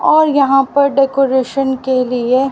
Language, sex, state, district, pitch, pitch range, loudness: Hindi, female, Haryana, Rohtak, 270 Hz, 260-275 Hz, -13 LUFS